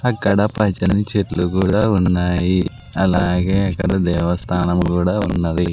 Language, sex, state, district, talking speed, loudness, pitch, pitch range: Telugu, male, Andhra Pradesh, Sri Satya Sai, 105 wpm, -18 LUFS, 90 Hz, 90-100 Hz